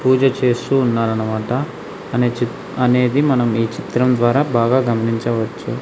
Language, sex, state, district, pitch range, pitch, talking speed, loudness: Telugu, male, Andhra Pradesh, Sri Satya Sai, 115-130 Hz, 125 Hz, 125 wpm, -17 LUFS